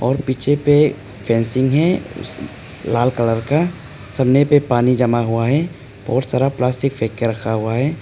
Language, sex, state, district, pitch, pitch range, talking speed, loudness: Hindi, male, Arunachal Pradesh, Papum Pare, 130 Hz, 115-140 Hz, 155 wpm, -17 LUFS